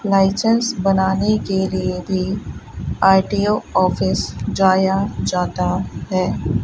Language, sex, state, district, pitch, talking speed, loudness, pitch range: Hindi, female, Rajasthan, Bikaner, 190 Hz, 90 wpm, -18 LUFS, 190-200 Hz